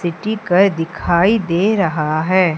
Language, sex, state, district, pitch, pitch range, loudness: Hindi, female, Madhya Pradesh, Umaria, 180 Hz, 165-205 Hz, -16 LUFS